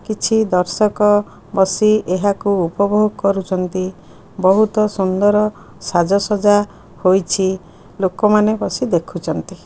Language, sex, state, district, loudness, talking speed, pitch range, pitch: Odia, female, Odisha, Khordha, -16 LUFS, 95 wpm, 185-210 Hz, 200 Hz